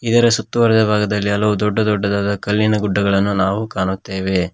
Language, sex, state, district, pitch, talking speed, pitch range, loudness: Kannada, male, Karnataka, Koppal, 105 Hz, 130 wpm, 100-110 Hz, -17 LUFS